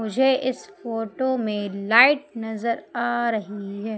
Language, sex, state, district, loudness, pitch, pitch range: Hindi, female, Madhya Pradesh, Umaria, -22 LUFS, 235 Hz, 220-260 Hz